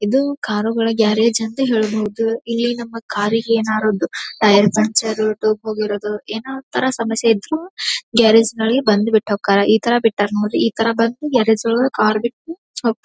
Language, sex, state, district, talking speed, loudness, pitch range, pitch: Kannada, female, Karnataka, Dharwad, 160 wpm, -17 LUFS, 215-235 Hz, 225 Hz